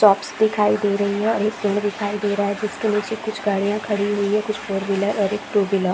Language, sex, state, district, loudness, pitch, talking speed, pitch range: Hindi, female, Jharkhand, Jamtara, -21 LUFS, 205 Hz, 275 wpm, 200-210 Hz